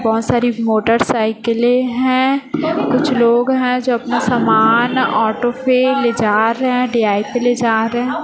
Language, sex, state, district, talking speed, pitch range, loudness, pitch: Hindi, female, Chhattisgarh, Raipur, 145 wpm, 225-255 Hz, -15 LUFS, 240 Hz